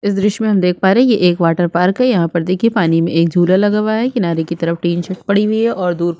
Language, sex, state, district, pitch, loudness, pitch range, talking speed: Hindi, female, Chhattisgarh, Sukma, 180 Hz, -14 LUFS, 170-210 Hz, 320 wpm